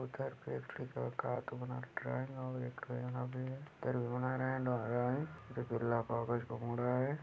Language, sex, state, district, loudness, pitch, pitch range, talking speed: Hindi, male, Chhattisgarh, Balrampur, -40 LUFS, 125 Hz, 115-130 Hz, 185 wpm